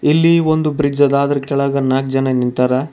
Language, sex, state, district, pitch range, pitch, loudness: Kannada, male, Karnataka, Bidar, 135-150 Hz, 140 Hz, -15 LUFS